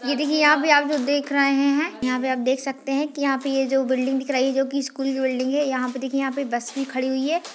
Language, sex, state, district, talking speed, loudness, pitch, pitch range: Hindi, female, Uttar Pradesh, Ghazipur, 300 wpm, -22 LUFS, 270 Hz, 265-285 Hz